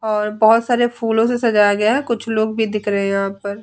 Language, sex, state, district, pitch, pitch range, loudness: Hindi, female, Bihar, Vaishali, 220 Hz, 205-230 Hz, -17 LUFS